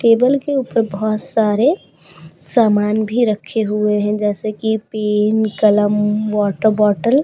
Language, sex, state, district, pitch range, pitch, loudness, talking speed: Hindi, female, Uttar Pradesh, Hamirpur, 210-220 Hz, 215 Hz, -16 LUFS, 140 wpm